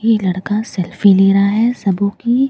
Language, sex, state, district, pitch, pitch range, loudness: Hindi, female, Bihar, Katihar, 200 Hz, 195-225 Hz, -14 LUFS